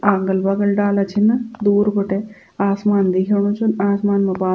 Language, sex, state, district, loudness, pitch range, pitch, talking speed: Garhwali, female, Uttarakhand, Tehri Garhwal, -18 LUFS, 195-205 Hz, 200 Hz, 170 wpm